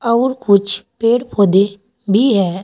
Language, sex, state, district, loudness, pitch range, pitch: Hindi, female, Uttar Pradesh, Saharanpur, -14 LUFS, 200-235 Hz, 205 Hz